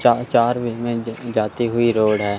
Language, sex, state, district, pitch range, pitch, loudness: Hindi, male, Chandigarh, Chandigarh, 110-120 Hz, 115 Hz, -20 LUFS